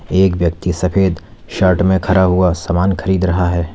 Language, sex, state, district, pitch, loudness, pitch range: Hindi, male, Uttar Pradesh, Lalitpur, 90 Hz, -15 LUFS, 90-95 Hz